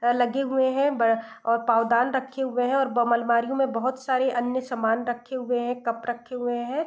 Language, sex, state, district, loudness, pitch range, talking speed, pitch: Hindi, female, Bihar, East Champaran, -25 LUFS, 235-260 Hz, 220 wpm, 245 Hz